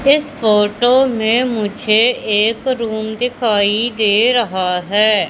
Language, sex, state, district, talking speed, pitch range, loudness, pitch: Hindi, female, Madhya Pradesh, Katni, 115 wpm, 210-245 Hz, -15 LUFS, 220 Hz